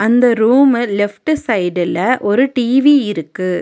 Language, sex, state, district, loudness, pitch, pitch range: Tamil, female, Tamil Nadu, Nilgiris, -14 LUFS, 235 Hz, 205-255 Hz